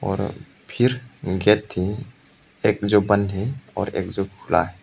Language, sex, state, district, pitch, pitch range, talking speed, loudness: Hindi, male, Arunachal Pradesh, Papum Pare, 100 Hz, 95-110 Hz, 150 wpm, -22 LUFS